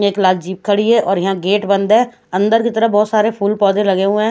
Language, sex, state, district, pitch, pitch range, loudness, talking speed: Hindi, female, Odisha, Khordha, 205 Hz, 195-220 Hz, -15 LUFS, 290 wpm